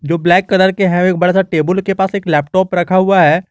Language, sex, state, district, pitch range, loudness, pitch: Hindi, male, Jharkhand, Garhwa, 175-190 Hz, -13 LUFS, 185 Hz